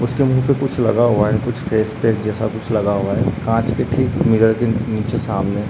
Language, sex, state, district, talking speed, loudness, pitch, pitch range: Hindi, male, Uttarakhand, Uttarkashi, 230 wpm, -18 LUFS, 115 Hz, 110-120 Hz